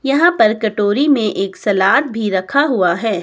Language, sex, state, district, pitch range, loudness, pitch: Hindi, female, Himachal Pradesh, Shimla, 195-280 Hz, -15 LUFS, 215 Hz